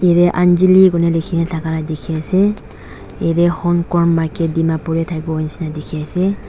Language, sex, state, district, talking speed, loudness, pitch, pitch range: Nagamese, female, Nagaland, Dimapur, 150 wpm, -16 LUFS, 165 Hz, 160-175 Hz